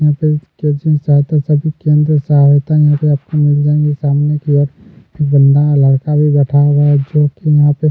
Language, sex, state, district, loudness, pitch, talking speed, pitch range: Hindi, male, Chhattisgarh, Kabirdham, -12 LUFS, 150 Hz, 195 wpm, 145-150 Hz